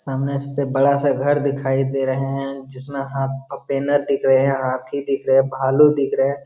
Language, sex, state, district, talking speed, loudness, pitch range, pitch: Hindi, male, Bihar, Jamui, 215 wpm, -19 LUFS, 135-140 Hz, 135 Hz